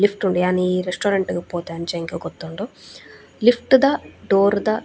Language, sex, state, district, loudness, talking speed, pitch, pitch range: Tulu, female, Karnataka, Dakshina Kannada, -20 LUFS, 160 wpm, 195 Hz, 175-215 Hz